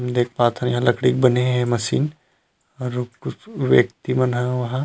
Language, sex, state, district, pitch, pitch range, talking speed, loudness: Chhattisgarhi, male, Chhattisgarh, Rajnandgaon, 125 Hz, 120-130 Hz, 185 wpm, -20 LUFS